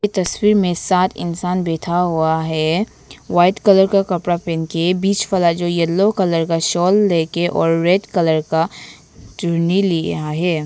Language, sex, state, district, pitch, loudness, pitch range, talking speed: Hindi, female, Arunachal Pradesh, Papum Pare, 175 Hz, -17 LUFS, 165-190 Hz, 155 wpm